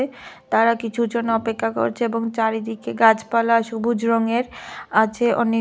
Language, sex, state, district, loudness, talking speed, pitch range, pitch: Bengali, female, Tripura, West Tripura, -20 LUFS, 130 wpm, 225-235 Hz, 230 Hz